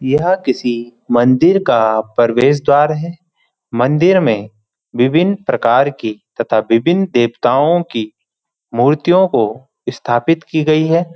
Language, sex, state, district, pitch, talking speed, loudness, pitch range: Hindi, male, Uttarakhand, Uttarkashi, 130 Hz, 120 wpm, -14 LUFS, 115-165 Hz